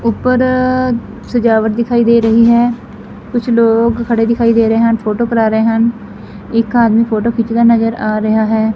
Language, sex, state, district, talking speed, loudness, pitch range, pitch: Punjabi, female, Punjab, Fazilka, 170 wpm, -12 LUFS, 225-235 Hz, 230 Hz